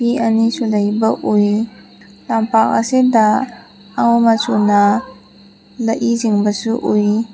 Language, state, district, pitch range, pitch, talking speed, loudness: Manipuri, Manipur, Imphal West, 210-235 Hz, 225 Hz, 80 wpm, -15 LUFS